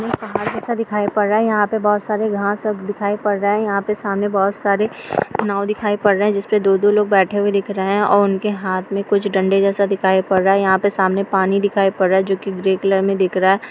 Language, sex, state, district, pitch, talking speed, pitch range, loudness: Hindi, female, Bihar, Kishanganj, 200 Hz, 260 wpm, 195-210 Hz, -17 LUFS